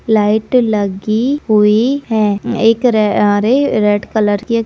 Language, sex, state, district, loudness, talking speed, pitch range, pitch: Hindi, female, Bihar, Purnia, -13 LUFS, 155 wpm, 210-240 Hz, 220 Hz